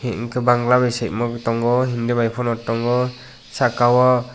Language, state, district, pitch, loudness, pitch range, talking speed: Kokborok, Tripura, West Tripura, 120 Hz, -19 LUFS, 120-125 Hz, 140 wpm